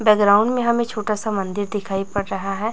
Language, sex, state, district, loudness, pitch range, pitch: Hindi, female, Chhattisgarh, Raipur, -20 LUFS, 195-220 Hz, 205 Hz